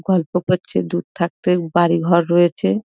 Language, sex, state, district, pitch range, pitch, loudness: Bengali, female, West Bengal, Dakshin Dinajpur, 170-180 Hz, 175 Hz, -18 LUFS